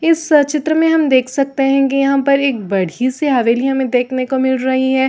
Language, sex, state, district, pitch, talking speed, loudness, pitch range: Hindi, female, Chhattisgarh, Raigarh, 270 Hz, 245 wpm, -15 LUFS, 260-280 Hz